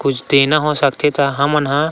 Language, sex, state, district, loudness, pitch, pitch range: Chhattisgarhi, male, Chhattisgarh, Rajnandgaon, -15 LUFS, 140 Hz, 140-150 Hz